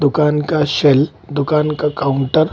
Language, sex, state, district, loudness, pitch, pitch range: Hindi, male, Bihar, Kishanganj, -16 LUFS, 150 Hz, 140-150 Hz